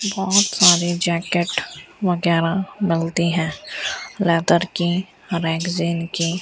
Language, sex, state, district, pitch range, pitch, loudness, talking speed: Hindi, female, Rajasthan, Bikaner, 170-185 Hz, 175 Hz, -19 LUFS, 95 wpm